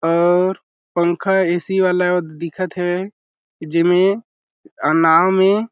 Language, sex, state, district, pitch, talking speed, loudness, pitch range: Chhattisgarhi, male, Chhattisgarh, Jashpur, 180 Hz, 115 wpm, -17 LUFS, 170-190 Hz